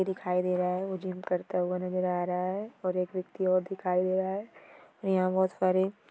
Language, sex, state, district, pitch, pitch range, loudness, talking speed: Hindi, female, Maharashtra, Aurangabad, 185 Hz, 180-190 Hz, -30 LUFS, 235 wpm